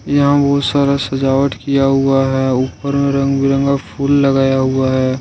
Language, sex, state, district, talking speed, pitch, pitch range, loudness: Hindi, male, Jharkhand, Ranchi, 170 wpm, 135 Hz, 135-140 Hz, -14 LUFS